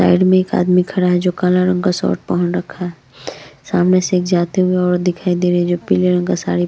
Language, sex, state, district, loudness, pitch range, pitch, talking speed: Hindi, female, Chhattisgarh, Korba, -16 LUFS, 175-180 Hz, 180 Hz, 260 wpm